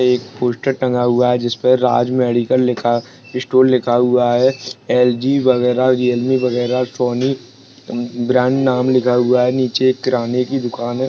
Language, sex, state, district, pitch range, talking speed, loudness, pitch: Hindi, male, Uttarakhand, Tehri Garhwal, 125-130 Hz, 160 wpm, -16 LUFS, 125 Hz